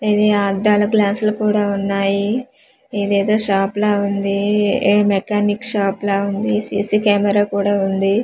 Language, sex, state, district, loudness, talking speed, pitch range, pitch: Telugu, female, Andhra Pradesh, Manyam, -17 LUFS, 145 wpm, 200-210 Hz, 205 Hz